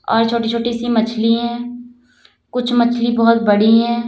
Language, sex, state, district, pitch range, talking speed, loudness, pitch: Hindi, female, Uttar Pradesh, Lalitpur, 230-240 Hz, 160 wpm, -16 LUFS, 235 Hz